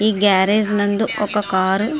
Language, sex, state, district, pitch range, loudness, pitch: Telugu, female, Andhra Pradesh, Guntur, 195-215 Hz, -17 LUFS, 210 Hz